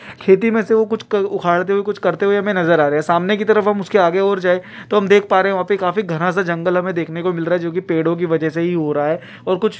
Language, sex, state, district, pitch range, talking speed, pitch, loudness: Hindi, male, Uttarakhand, Uttarkashi, 170-205 Hz, 330 wpm, 185 Hz, -17 LUFS